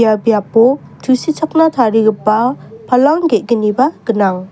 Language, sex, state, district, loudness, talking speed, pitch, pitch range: Garo, female, Meghalaya, West Garo Hills, -13 LUFS, 95 wpm, 230 Hz, 220-265 Hz